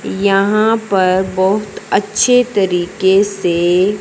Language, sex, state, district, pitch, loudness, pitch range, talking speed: Hindi, male, Punjab, Fazilka, 195 Hz, -14 LUFS, 185-210 Hz, 90 wpm